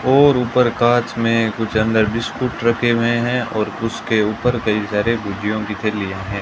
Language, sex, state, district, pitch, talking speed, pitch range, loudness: Hindi, male, Rajasthan, Bikaner, 115 Hz, 175 wpm, 105-120 Hz, -18 LUFS